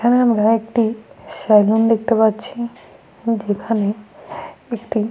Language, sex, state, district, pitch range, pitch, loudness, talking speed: Bengali, female, Jharkhand, Sahebganj, 215-235 Hz, 225 Hz, -18 LUFS, 95 wpm